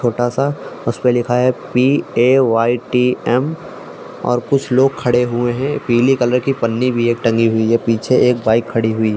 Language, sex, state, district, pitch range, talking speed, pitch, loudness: Hindi, male, Uttar Pradesh, Budaun, 115-130 Hz, 185 wpm, 120 Hz, -16 LUFS